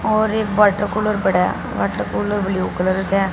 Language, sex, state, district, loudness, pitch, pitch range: Hindi, female, Punjab, Fazilka, -19 LUFS, 205 Hz, 190-210 Hz